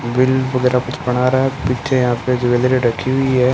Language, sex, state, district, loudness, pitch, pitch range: Hindi, male, Rajasthan, Bikaner, -16 LUFS, 125 Hz, 125-130 Hz